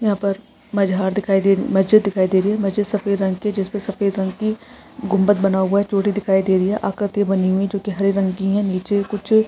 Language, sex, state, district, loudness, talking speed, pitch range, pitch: Hindi, female, Rajasthan, Nagaur, -19 LUFS, 255 wpm, 195-205 Hz, 200 Hz